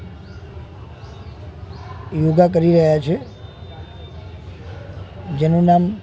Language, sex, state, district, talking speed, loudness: Gujarati, male, Gujarat, Gandhinagar, 70 wpm, -16 LUFS